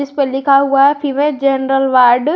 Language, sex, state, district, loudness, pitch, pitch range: Hindi, female, Jharkhand, Garhwa, -13 LUFS, 275 Hz, 270-280 Hz